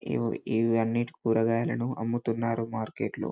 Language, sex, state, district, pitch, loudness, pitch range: Telugu, male, Telangana, Karimnagar, 115 Hz, -29 LUFS, 115-120 Hz